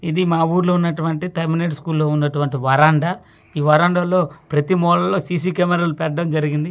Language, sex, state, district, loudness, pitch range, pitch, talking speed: Telugu, male, Andhra Pradesh, Manyam, -18 LUFS, 150-175 Hz, 165 Hz, 170 wpm